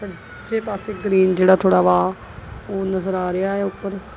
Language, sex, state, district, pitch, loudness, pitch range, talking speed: Punjabi, female, Punjab, Kapurthala, 190 Hz, -19 LUFS, 120-195 Hz, 175 wpm